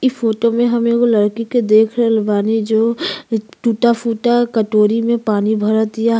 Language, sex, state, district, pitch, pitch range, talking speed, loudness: Bhojpuri, female, Uttar Pradesh, Gorakhpur, 225 Hz, 220-235 Hz, 155 wpm, -15 LUFS